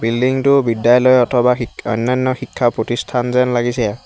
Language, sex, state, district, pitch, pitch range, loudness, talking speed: Assamese, male, Assam, Hailakandi, 125 Hz, 120-130 Hz, -15 LUFS, 150 wpm